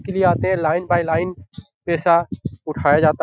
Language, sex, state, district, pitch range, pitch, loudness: Hindi, male, Bihar, Jahanabad, 155-175 Hz, 170 Hz, -19 LUFS